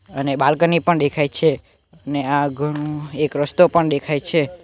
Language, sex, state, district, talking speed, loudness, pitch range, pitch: Gujarati, male, Gujarat, Navsari, 170 wpm, -19 LUFS, 145-165 Hz, 150 Hz